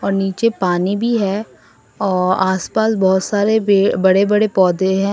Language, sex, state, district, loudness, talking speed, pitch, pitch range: Hindi, female, Assam, Sonitpur, -16 LUFS, 150 wpm, 195 Hz, 190-210 Hz